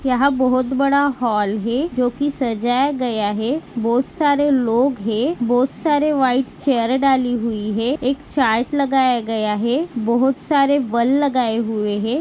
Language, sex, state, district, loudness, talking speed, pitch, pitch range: Hindi, female, Maharashtra, Nagpur, -18 LUFS, 155 wpm, 255 Hz, 230-275 Hz